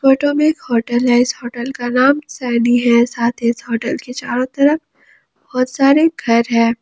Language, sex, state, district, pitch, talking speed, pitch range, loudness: Hindi, female, Jharkhand, Palamu, 245 Hz, 185 wpm, 235-275 Hz, -16 LUFS